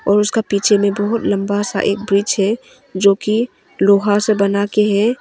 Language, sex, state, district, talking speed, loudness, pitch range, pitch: Hindi, female, Arunachal Pradesh, Longding, 195 wpm, -16 LUFS, 200-215 Hz, 205 Hz